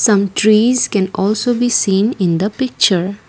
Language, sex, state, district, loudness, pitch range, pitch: English, female, Assam, Kamrup Metropolitan, -14 LUFS, 195-240 Hz, 210 Hz